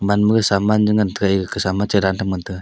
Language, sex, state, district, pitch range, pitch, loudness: Wancho, male, Arunachal Pradesh, Longding, 95-105 Hz, 100 Hz, -18 LUFS